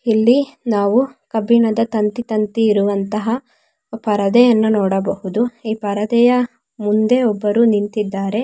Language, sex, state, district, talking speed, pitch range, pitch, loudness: Kannada, female, Karnataka, Mysore, 90 wpm, 210-235 Hz, 220 Hz, -17 LUFS